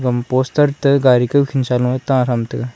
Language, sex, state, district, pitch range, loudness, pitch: Wancho, male, Arunachal Pradesh, Longding, 125-140 Hz, -16 LUFS, 130 Hz